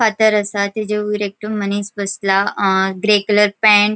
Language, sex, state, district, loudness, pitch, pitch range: Konkani, female, Goa, North and South Goa, -16 LUFS, 205 Hz, 200-210 Hz